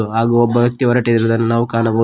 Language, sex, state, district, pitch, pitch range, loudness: Kannada, male, Karnataka, Koppal, 115 Hz, 115-120 Hz, -15 LUFS